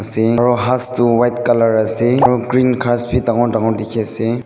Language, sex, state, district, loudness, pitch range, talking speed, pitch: Nagamese, male, Nagaland, Dimapur, -15 LUFS, 115-125 Hz, 175 wpm, 120 Hz